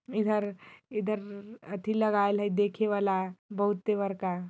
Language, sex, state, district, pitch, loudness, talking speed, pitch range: Bajjika, female, Bihar, Vaishali, 205 Hz, -30 LUFS, 135 wpm, 200-215 Hz